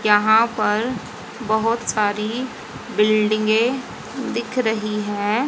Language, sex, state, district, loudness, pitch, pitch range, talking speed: Hindi, female, Haryana, Jhajjar, -20 LUFS, 220 Hz, 210-235 Hz, 85 wpm